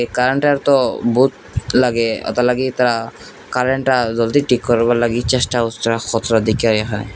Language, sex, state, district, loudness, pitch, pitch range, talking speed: Bengali, male, Assam, Hailakandi, -16 LUFS, 120 Hz, 115-125 Hz, 115 wpm